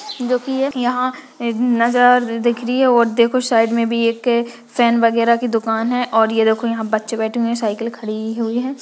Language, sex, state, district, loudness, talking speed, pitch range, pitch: Hindi, female, Uttarakhand, Tehri Garhwal, -17 LUFS, 210 wpm, 230-245 Hz, 235 Hz